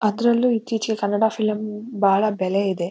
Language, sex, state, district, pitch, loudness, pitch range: Kannada, female, Karnataka, Mysore, 215 Hz, -21 LUFS, 200-225 Hz